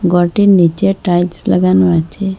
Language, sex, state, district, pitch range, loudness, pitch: Bengali, female, Assam, Hailakandi, 165-195 Hz, -12 LUFS, 175 Hz